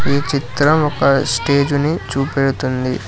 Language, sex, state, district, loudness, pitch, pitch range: Telugu, male, Telangana, Hyderabad, -16 LUFS, 140 Hz, 130-145 Hz